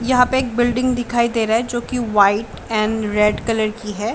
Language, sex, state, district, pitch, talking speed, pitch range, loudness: Hindi, female, Bihar, Saran, 225 Hz, 230 wpm, 215-245 Hz, -18 LUFS